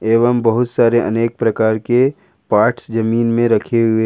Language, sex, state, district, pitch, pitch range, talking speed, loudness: Hindi, male, Jharkhand, Ranchi, 115 Hz, 115-120 Hz, 160 wpm, -15 LUFS